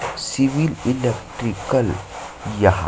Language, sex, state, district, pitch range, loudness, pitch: Chhattisgarhi, male, Chhattisgarh, Sarguja, 100-135 Hz, -21 LUFS, 120 Hz